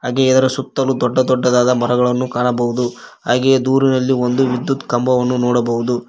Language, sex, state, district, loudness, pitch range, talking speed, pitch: Kannada, male, Karnataka, Koppal, -16 LUFS, 125-130 Hz, 130 wpm, 125 Hz